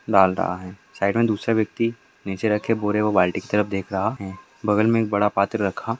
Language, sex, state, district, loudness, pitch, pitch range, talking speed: Hindi, male, Karnataka, Raichur, -22 LUFS, 105 Hz, 100-115 Hz, 240 wpm